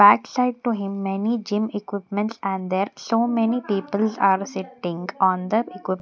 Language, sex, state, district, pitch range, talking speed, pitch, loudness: English, female, Maharashtra, Gondia, 190-225 Hz, 180 wpm, 200 Hz, -23 LUFS